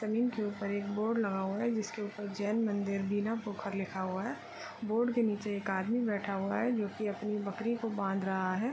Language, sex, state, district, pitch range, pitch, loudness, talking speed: Hindi, female, Bihar, Gopalganj, 200-225 Hz, 210 Hz, -34 LUFS, 225 wpm